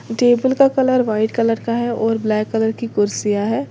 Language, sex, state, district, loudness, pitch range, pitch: Hindi, female, Uttar Pradesh, Lalitpur, -17 LUFS, 220-245 Hz, 230 Hz